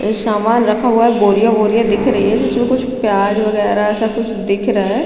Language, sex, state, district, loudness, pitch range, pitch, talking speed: Hindi, female, Chhattisgarh, Raigarh, -14 LUFS, 210-230 Hz, 215 Hz, 225 wpm